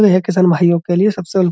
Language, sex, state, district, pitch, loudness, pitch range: Hindi, male, Uttar Pradesh, Budaun, 185 Hz, -14 LUFS, 175-195 Hz